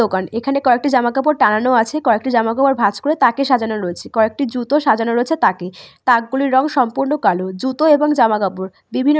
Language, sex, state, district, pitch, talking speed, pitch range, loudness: Bengali, female, West Bengal, Malda, 245 Hz, 210 wpm, 220-275 Hz, -16 LUFS